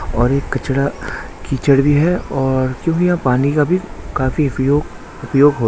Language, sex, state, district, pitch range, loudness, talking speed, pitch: Hindi, male, Maharashtra, Solapur, 130-150 Hz, -17 LUFS, 170 wpm, 140 Hz